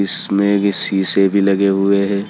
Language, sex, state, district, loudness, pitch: Hindi, male, Uttar Pradesh, Saharanpur, -13 LUFS, 100 Hz